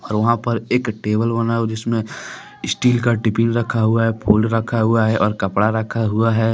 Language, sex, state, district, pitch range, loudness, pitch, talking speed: Hindi, male, Jharkhand, Deoghar, 110-115 Hz, -18 LUFS, 115 Hz, 190 wpm